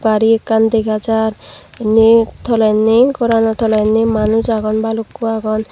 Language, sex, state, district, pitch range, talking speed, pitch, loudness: Chakma, female, Tripura, Dhalai, 220-225 Hz, 125 wpm, 225 Hz, -14 LUFS